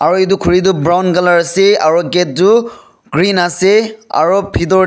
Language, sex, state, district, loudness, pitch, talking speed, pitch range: Nagamese, male, Nagaland, Dimapur, -12 LUFS, 185 Hz, 175 wpm, 175-195 Hz